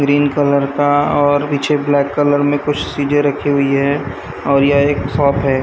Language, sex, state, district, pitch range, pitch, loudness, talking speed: Hindi, male, Maharashtra, Gondia, 140-145 Hz, 145 Hz, -15 LUFS, 190 wpm